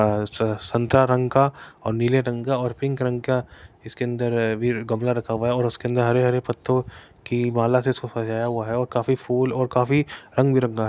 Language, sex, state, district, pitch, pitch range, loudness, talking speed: Hindi, male, Uttar Pradesh, Etah, 120 Hz, 115-125 Hz, -23 LUFS, 210 wpm